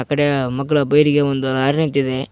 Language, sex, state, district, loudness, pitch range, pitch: Kannada, male, Karnataka, Koppal, -17 LUFS, 130-145 Hz, 140 Hz